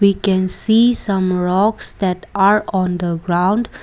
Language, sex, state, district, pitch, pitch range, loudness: English, female, Assam, Kamrup Metropolitan, 190 Hz, 185-210 Hz, -16 LUFS